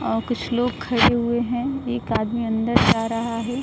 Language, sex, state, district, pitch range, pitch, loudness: Hindi, female, Bihar, Saran, 230-245 Hz, 235 Hz, -22 LUFS